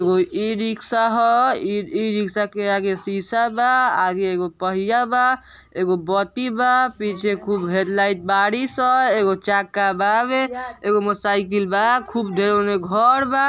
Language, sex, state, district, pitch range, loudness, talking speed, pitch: Bhojpuri, female, Uttar Pradesh, Ghazipur, 195-245 Hz, -19 LUFS, 145 wpm, 205 Hz